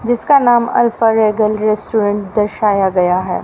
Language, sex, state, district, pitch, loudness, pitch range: Hindi, female, Haryana, Rohtak, 215 Hz, -14 LUFS, 205-230 Hz